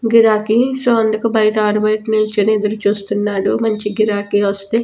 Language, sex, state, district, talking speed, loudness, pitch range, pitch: Telugu, female, Telangana, Nalgonda, 125 wpm, -15 LUFS, 205-225 Hz, 215 Hz